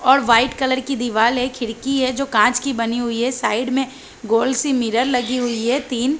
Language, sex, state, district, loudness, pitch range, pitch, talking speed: Hindi, female, Chhattisgarh, Balrampur, -19 LUFS, 235-265 Hz, 250 Hz, 240 wpm